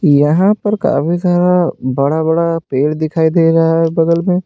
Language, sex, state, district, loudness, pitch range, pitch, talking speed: Hindi, male, Uttar Pradesh, Lalitpur, -13 LUFS, 155-175 Hz, 165 Hz, 175 wpm